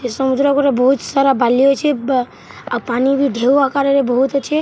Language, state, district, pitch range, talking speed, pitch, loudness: Sambalpuri, Odisha, Sambalpur, 255-280 Hz, 195 wpm, 270 Hz, -15 LUFS